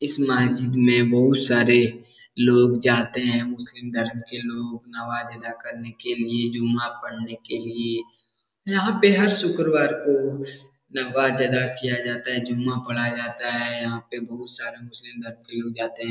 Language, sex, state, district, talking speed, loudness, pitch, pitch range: Hindi, male, Bihar, Jahanabad, 170 wpm, -23 LUFS, 120 Hz, 120-125 Hz